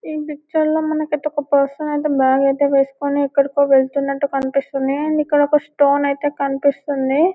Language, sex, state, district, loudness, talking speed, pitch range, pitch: Telugu, female, Telangana, Karimnagar, -18 LUFS, 165 wpm, 275-300 Hz, 285 Hz